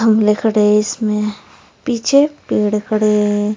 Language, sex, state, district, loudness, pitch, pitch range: Hindi, female, Uttar Pradesh, Saharanpur, -15 LUFS, 210 Hz, 210-220 Hz